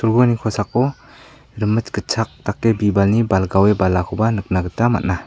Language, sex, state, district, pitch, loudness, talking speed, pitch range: Garo, male, Meghalaya, South Garo Hills, 105 Hz, -18 LUFS, 125 wpm, 95-115 Hz